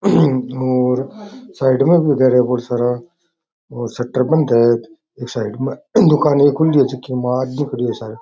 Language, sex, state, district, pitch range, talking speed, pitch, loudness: Rajasthani, male, Rajasthan, Nagaur, 125-150 Hz, 175 wpm, 130 Hz, -16 LUFS